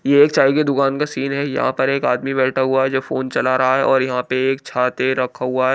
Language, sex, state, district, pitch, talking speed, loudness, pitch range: Hindi, male, Bihar, Katihar, 130 Hz, 290 wpm, -18 LUFS, 130-135 Hz